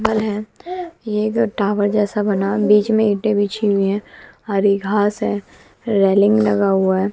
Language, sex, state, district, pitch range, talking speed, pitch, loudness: Hindi, female, Bihar, West Champaran, 200-215 Hz, 150 wpm, 210 Hz, -18 LUFS